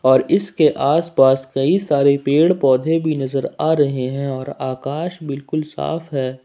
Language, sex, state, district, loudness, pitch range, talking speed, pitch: Hindi, male, Jharkhand, Ranchi, -18 LUFS, 135-160 Hz, 160 wpm, 140 Hz